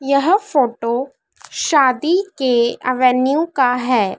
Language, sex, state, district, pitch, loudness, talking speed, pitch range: Hindi, female, Madhya Pradesh, Dhar, 265 Hz, -16 LUFS, 115 wpm, 250-300 Hz